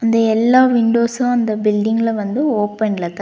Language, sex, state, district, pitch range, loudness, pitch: Tamil, female, Tamil Nadu, Nilgiris, 215-235 Hz, -16 LUFS, 225 Hz